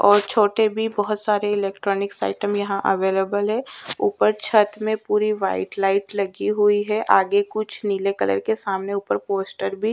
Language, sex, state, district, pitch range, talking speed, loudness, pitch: Hindi, female, Haryana, Charkhi Dadri, 195-215 Hz, 170 wpm, -21 LUFS, 205 Hz